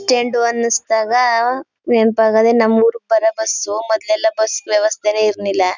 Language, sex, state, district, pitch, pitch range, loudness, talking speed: Kannada, female, Karnataka, Chamarajanagar, 230 Hz, 215-250 Hz, -15 LUFS, 105 wpm